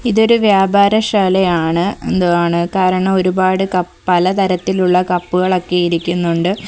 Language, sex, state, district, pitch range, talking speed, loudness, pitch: Malayalam, female, Kerala, Kollam, 175-195 Hz, 90 wpm, -14 LUFS, 185 Hz